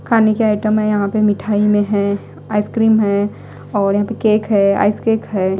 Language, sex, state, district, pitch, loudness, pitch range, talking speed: Hindi, female, Odisha, Malkangiri, 210 Hz, -16 LUFS, 200-215 Hz, 205 wpm